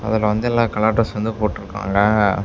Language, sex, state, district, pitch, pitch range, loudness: Tamil, male, Tamil Nadu, Namakkal, 105 Hz, 105-110 Hz, -19 LUFS